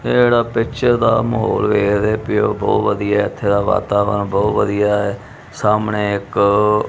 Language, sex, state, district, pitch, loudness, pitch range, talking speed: Punjabi, male, Punjab, Kapurthala, 105 Hz, -16 LUFS, 100-115 Hz, 165 wpm